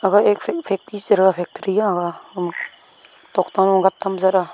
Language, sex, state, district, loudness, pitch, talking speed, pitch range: Wancho, female, Arunachal Pradesh, Longding, -19 LUFS, 190 Hz, 120 wpm, 185-200 Hz